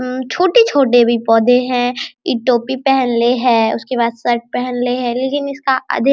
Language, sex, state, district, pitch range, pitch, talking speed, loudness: Hindi, male, Bihar, Araria, 240-265 Hz, 250 Hz, 185 wpm, -15 LUFS